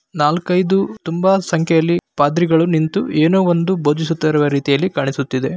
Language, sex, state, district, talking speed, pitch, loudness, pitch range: Kannada, male, Karnataka, Bellary, 110 wpm, 165 Hz, -16 LUFS, 150-180 Hz